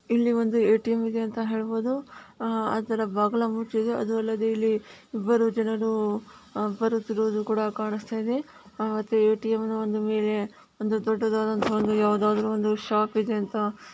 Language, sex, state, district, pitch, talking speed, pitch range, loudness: Kannada, female, Karnataka, Bellary, 220 Hz, 135 wpm, 215-225 Hz, -26 LUFS